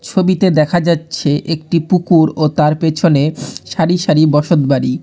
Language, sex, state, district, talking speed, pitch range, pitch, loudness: Bengali, male, West Bengal, Alipurduar, 130 wpm, 150-170 Hz, 160 Hz, -13 LUFS